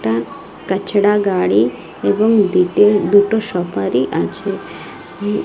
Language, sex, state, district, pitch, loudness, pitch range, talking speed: Bengali, female, Odisha, Malkangiri, 200 Hz, -16 LUFS, 175-205 Hz, 100 wpm